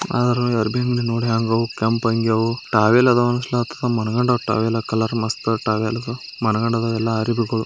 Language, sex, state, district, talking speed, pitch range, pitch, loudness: Kannada, male, Karnataka, Bijapur, 70 wpm, 110-120 Hz, 115 Hz, -20 LUFS